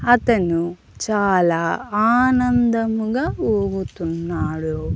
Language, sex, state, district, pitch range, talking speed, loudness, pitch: Telugu, female, Andhra Pradesh, Annamaya, 170-235 Hz, 50 wpm, -20 LUFS, 205 Hz